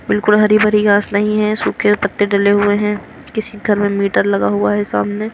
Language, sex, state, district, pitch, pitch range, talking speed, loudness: Hindi, female, Haryana, Rohtak, 205 Hz, 200-210 Hz, 200 wpm, -15 LUFS